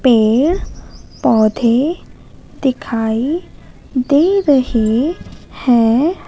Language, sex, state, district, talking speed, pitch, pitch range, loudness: Hindi, female, Madhya Pradesh, Katni, 55 wpm, 255 Hz, 230-300 Hz, -15 LUFS